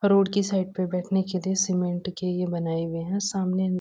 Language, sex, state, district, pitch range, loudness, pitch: Hindi, female, Uttarakhand, Uttarkashi, 180-190 Hz, -26 LUFS, 185 Hz